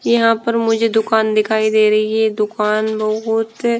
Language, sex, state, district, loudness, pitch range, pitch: Hindi, female, Punjab, Fazilka, -16 LUFS, 215-225 Hz, 220 Hz